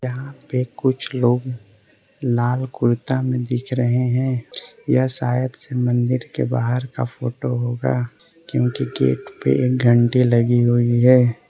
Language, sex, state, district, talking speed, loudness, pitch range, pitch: Hindi, male, Arunachal Pradesh, Lower Dibang Valley, 135 wpm, -20 LUFS, 120-130 Hz, 125 Hz